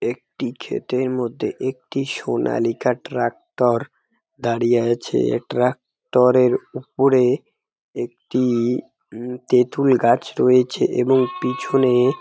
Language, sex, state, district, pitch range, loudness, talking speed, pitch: Bengali, male, West Bengal, Jalpaiguri, 120-130 Hz, -20 LUFS, 100 wpm, 125 Hz